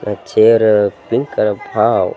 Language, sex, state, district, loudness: Kannada, male, Karnataka, Raichur, -14 LUFS